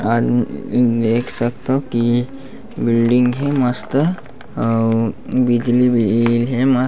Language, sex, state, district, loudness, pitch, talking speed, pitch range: Chhattisgarhi, male, Chhattisgarh, Bastar, -17 LUFS, 120 Hz, 120 wpm, 115-130 Hz